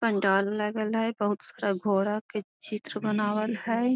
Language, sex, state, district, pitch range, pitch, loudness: Magahi, female, Bihar, Gaya, 205-220 Hz, 210 Hz, -28 LUFS